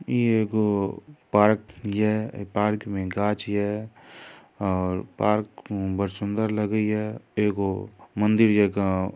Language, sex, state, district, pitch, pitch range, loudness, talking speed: Maithili, male, Bihar, Darbhanga, 105 Hz, 100-105 Hz, -25 LUFS, 120 wpm